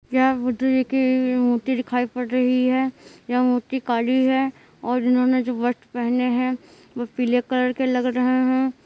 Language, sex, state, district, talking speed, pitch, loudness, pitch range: Hindi, male, Bihar, Purnia, 175 wpm, 250 Hz, -21 LUFS, 245-260 Hz